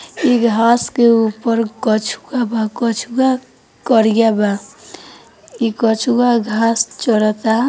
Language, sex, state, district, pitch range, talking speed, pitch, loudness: Hindi, female, Bihar, East Champaran, 220-240 Hz, 100 wpm, 230 Hz, -15 LUFS